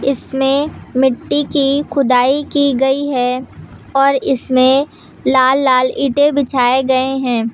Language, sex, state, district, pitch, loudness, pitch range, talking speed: Hindi, female, Uttar Pradesh, Lucknow, 270 Hz, -14 LUFS, 255-280 Hz, 120 wpm